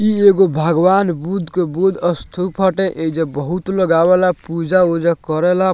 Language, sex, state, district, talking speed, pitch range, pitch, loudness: Bhojpuri, male, Bihar, Muzaffarpur, 145 wpm, 165-190 Hz, 180 Hz, -16 LUFS